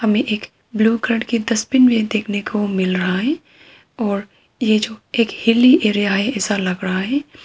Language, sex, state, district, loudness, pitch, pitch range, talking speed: Hindi, female, Arunachal Pradesh, Papum Pare, -18 LUFS, 220 Hz, 205-235 Hz, 185 wpm